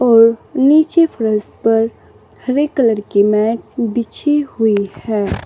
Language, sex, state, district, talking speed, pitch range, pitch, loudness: Hindi, female, Uttar Pradesh, Saharanpur, 120 wpm, 220-270 Hz, 230 Hz, -15 LUFS